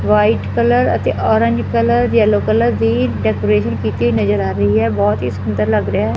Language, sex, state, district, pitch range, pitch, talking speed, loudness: Punjabi, female, Punjab, Fazilka, 105-115 Hz, 110 Hz, 205 wpm, -15 LUFS